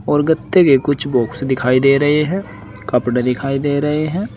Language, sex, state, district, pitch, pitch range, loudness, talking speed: Hindi, male, Uttar Pradesh, Saharanpur, 140 Hz, 125-150 Hz, -16 LUFS, 190 wpm